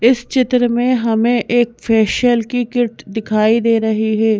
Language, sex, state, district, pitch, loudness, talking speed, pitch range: Hindi, female, Madhya Pradesh, Bhopal, 235 Hz, -15 LUFS, 165 wpm, 220-245 Hz